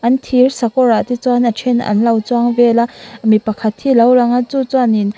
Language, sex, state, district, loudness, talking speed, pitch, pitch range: Mizo, female, Mizoram, Aizawl, -14 LUFS, 255 wpm, 240 Hz, 225-250 Hz